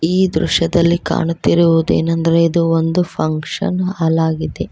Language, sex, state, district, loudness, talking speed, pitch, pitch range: Kannada, female, Karnataka, Koppal, -16 LUFS, 100 wpm, 165 Hz, 160-170 Hz